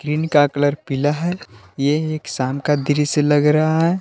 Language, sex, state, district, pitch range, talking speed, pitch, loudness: Hindi, male, Jharkhand, Palamu, 145-155 Hz, 195 wpm, 150 Hz, -18 LUFS